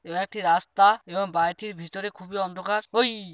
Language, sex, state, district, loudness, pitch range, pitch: Bengali, male, West Bengal, Paschim Medinipur, -24 LUFS, 180-210 Hz, 195 Hz